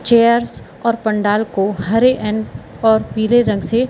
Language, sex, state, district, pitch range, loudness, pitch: Hindi, female, Madhya Pradesh, Katni, 210-235 Hz, -16 LUFS, 225 Hz